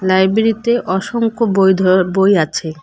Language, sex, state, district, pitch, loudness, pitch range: Bengali, female, West Bengal, Cooch Behar, 190 Hz, -14 LUFS, 185-225 Hz